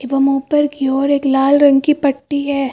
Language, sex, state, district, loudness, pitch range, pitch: Hindi, female, Uttar Pradesh, Lucknow, -14 LUFS, 270-285 Hz, 275 Hz